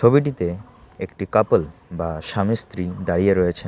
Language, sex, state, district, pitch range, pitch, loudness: Bengali, male, Tripura, Unakoti, 85-110 Hz, 95 Hz, -21 LUFS